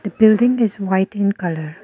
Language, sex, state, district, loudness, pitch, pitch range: English, female, Arunachal Pradesh, Lower Dibang Valley, -17 LUFS, 200 Hz, 190-220 Hz